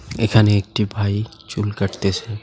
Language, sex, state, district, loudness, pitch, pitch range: Bengali, male, West Bengal, Alipurduar, -20 LUFS, 105 Hz, 100-110 Hz